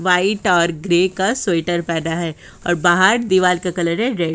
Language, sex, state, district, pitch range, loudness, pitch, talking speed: Hindi, female, Uttar Pradesh, Jyotiba Phule Nagar, 170-190 Hz, -17 LUFS, 180 Hz, 205 wpm